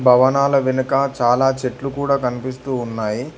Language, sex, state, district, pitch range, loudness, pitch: Telugu, male, Telangana, Hyderabad, 125-135 Hz, -18 LUFS, 130 Hz